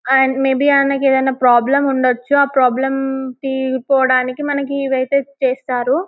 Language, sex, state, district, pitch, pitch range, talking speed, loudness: Telugu, female, Telangana, Karimnagar, 265 Hz, 260-275 Hz, 130 wpm, -16 LUFS